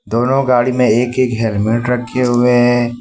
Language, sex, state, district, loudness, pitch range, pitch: Hindi, male, Jharkhand, Ranchi, -14 LUFS, 120-125 Hz, 120 Hz